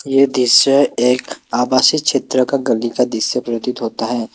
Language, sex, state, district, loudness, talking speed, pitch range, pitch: Hindi, male, Assam, Kamrup Metropolitan, -15 LUFS, 165 wpm, 120-135 Hz, 125 Hz